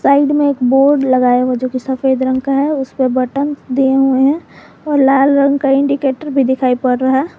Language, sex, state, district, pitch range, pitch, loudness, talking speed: Hindi, female, Jharkhand, Garhwa, 260-280 Hz, 270 Hz, -14 LUFS, 230 wpm